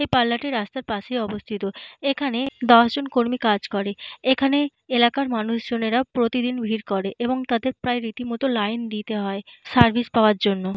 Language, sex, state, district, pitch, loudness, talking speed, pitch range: Bengali, female, Jharkhand, Jamtara, 235 Hz, -22 LUFS, 145 wpm, 215-255 Hz